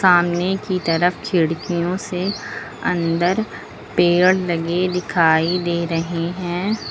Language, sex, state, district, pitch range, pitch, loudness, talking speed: Hindi, female, Uttar Pradesh, Lucknow, 170-185 Hz, 175 Hz, -19 LUFS, 105 wpm